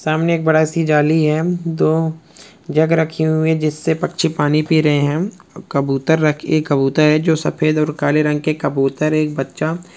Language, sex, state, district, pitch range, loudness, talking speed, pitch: Hindi, male, Rajasthan, Churu, 150-160 Hz, -17 LUFS, 185 wpm, 155 Hz